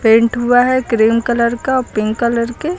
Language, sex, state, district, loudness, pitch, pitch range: Hindi, female, Uttar Pradesh, Lucknow, -14 LUFS, 235 Hz, 230-250 Hz